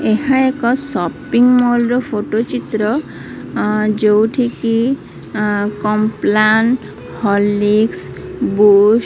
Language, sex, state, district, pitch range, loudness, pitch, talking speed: Odia, female, Odisha, Sambalpur, 210-245 Hz, -15 LUFS, 220 Hz, 100 wpm